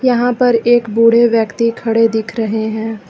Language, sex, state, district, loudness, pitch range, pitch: Hindi, female, Uttar Pradesh, Lucknow, -14 LUFS, 220-235 Hz, 230 Hz